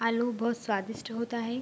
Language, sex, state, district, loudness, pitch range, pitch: Hindi, female, Bihar, Vaishali, -32 LUFS, 225-235 Hz, 230 Hz